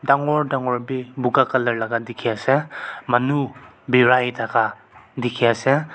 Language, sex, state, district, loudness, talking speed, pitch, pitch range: Nagamese, male, Nagaland, Kohima, -20 LUFS, 120 wpm, 125 Hz, 115-135 Hz